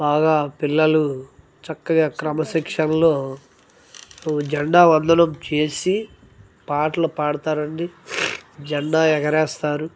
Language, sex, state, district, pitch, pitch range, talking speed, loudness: Telugu, male, Andhra Pradesh, Guntur, 155 Hz, 150-160 Hz, 65 wpm, -20 LUFS